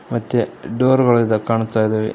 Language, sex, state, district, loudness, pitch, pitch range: Kannada, male, Karnataka, Koppal, -17 LUFS, 115 Hz, 110-120 Hz